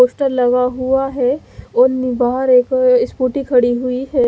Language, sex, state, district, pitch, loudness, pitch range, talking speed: Hindi, female, Odisha, Khordha, 255 Hz, -15 LUFS, 250-275 Hz, 155 wpm